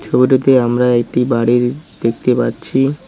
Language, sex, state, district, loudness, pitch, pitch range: Bengali, male, West Bengal, Cooch Behar, -14 LUFS, 125 Hz, 120-135 Hz